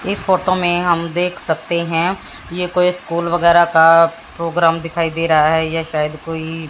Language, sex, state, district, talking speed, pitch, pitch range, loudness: Hindi, female, Haryana, Jhajjar, 180 wpm, 170 Hz, 165-175 Hz, -16 LUFS